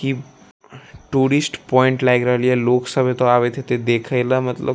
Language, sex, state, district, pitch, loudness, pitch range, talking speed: Maithili, male, Bihar, Darbhanga, 125 Hz, -18 LUFS, 125-130 Hz, 190 wpm